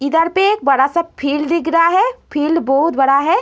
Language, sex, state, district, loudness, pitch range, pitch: Hindi, female, Uttar Pradesh, Muzaffarnagar, -15 LUFS, 280-335 Hz, 325 Hz